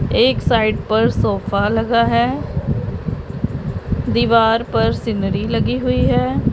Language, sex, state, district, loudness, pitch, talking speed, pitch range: Hindi, female, Punjab, Pathankot, -17 LUFS, 225 Hz, 110 wpm, 220-235 Hz